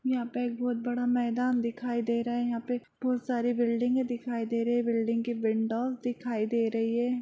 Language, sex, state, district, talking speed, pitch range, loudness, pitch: Hindi, female, Bihar, Bhagalpur, 215 wpm, 230-245 Hz, -30 LUFS, 240 Hz